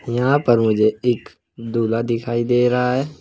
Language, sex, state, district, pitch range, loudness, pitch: Hindi, male, Uttar Pradesh, Saharanpur, 115-125 Hz, -19 LUFS, 120 Hz